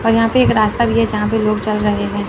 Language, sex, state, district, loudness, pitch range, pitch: Hindi, female, Chandigarh, Chandigarh, -15 LUFS, 210-225 Hz, 215 Hz